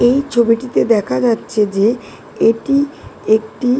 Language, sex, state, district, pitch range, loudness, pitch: Bengali, female, West Bengal, Dakshin Dinajpur, 220-250 Hz, -15 LUFS, 230 Hz